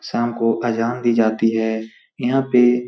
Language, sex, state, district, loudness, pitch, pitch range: Hindi, male, Bihar, Supaul, -19 LUFS, 120 Hz, 115-120 Hz